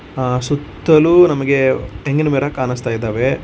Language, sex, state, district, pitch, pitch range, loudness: Kannada, male, Karnataka, Koppal, 130 Hz, 125-145 Hz, -15 LUFS